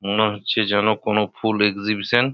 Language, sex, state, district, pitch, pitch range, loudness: Bengali, male, West Bengal, Purulia, 105 Hz, 105-110 Hz, -20 LUFS